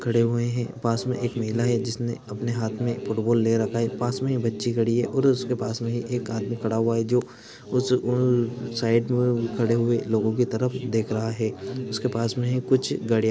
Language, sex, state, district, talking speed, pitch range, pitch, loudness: Hindi, male, Maharashtra, Dhule, 210 wpm, 115-125 Hz, 120 Hz, -25 LUFS